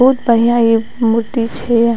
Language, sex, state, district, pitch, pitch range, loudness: Maithili, female, Bihar, Madhepura, 235 Hz, 230-240 Hz, -14 LUFS